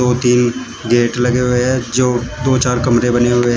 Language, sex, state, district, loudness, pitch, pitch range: Hindi, male, Uttar Pradesh, Shamli, -14 LUFS, 125 Hz, 120-125 Hz